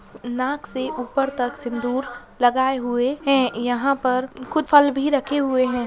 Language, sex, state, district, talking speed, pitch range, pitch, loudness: Hindi, female, Bihar, Purnia, 165 wpm, 245-275 Hz, 255 Hz, -21 LUFS